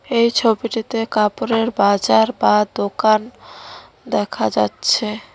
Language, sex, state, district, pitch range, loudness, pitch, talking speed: Bengali, female, West Bengal, Cooch Behar, 200-230 Hz, -17 LUFS, 215 Hz, 90 wpm